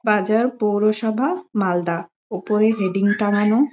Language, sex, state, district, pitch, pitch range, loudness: Bengali, female, West Bengal, Malda, 210 Hz, 200-220 Hz, -20 LUFS